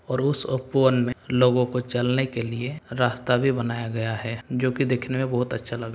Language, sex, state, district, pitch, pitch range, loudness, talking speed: Hindi, male, Bihar, Kishanganj, 125 Hz, 120-130 Hz, -24 LUFS, 220 wpm